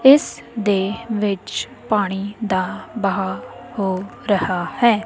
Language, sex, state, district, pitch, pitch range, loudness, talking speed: Punjabi, female, Punjab, Kapurthala, 205 Hz, 195-230 Hz, -21 LUFS, 105 wpm